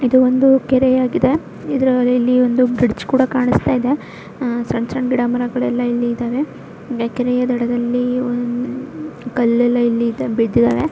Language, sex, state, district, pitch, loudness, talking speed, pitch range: Kannada, female, Karnataka, Raichur, 245 Hz, -17 LUFS, 125 wpm, 240-255 Hz